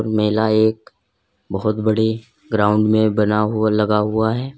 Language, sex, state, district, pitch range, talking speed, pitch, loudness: Hindi, male, Uttar Pradesh, Lalitpur, 105-110 Hz, 145 wpm, 110 Hz, -18 LUFS